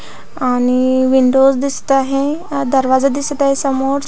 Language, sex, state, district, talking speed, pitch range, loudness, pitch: Marathi, female, Maharashtra, Pune, 115 wpm, 260-275 Hz, -14 LUFS, 270 Hz